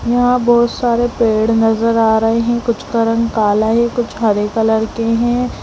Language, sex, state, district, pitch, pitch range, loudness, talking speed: Hindi, female, Bihar, Darbhanga, 230 Hz, 225-240 Hz, -14 LUFS, 190 wpm